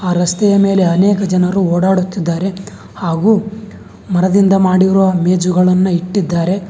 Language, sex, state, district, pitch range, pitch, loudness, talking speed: Kannada, male, Karnataka, Bangalore, 180-195 Hz, 185 Hz, -13 LUFS, 100 wpm